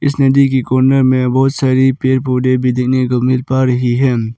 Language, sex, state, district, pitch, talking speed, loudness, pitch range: Hindi, male, Arunachal Pradesh, Lower Dibang Valley, 130 Hz, 220 wpm, -13 LUFS, 125-130 Hz